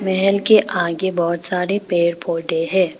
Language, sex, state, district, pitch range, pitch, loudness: Hindi, female, Arunachal Pradesh, Papum Pare, 170-190 Hz, 180 Hz, -18 LUFS